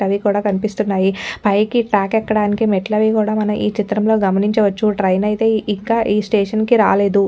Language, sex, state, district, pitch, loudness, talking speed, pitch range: Telugu, female, Telangana, Nalgonda, 210 Hz, -16 LUFS, 165 wpm, 200-215 Hz